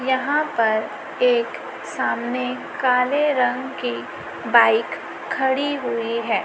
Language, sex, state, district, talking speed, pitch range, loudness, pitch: Hindi, female, Chhattisgarh, Raipur, 100 wpm, 240-285 Hz, -21 LUFS, 260 Hz